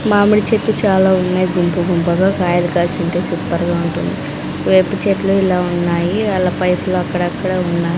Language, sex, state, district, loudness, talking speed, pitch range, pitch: Telugu, female, Andhra Pradesh, Sri Satya Sai, -16 LUFS, 150 wpm, 175-190 Hz, 180 Hz